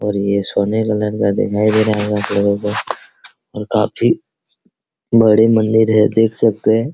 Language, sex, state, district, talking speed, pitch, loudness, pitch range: Hindi, male, Bihar, Araria, 105 wpm, 105 Hz, -15 LUFS, 105-110 Hz